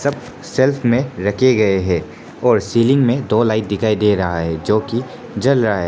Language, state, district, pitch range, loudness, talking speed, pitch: Hindi, Arunachal Pradesh, Papum Pare, 100-130 Hz, -17 LUFS, 205 wpm, 110 Hz